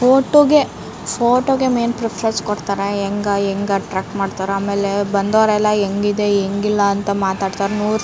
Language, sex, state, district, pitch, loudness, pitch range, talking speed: Kannada, female, Karnataka, Raichur, 205 Hz, -17 LUFS, 200-220 Hz, 125 wpm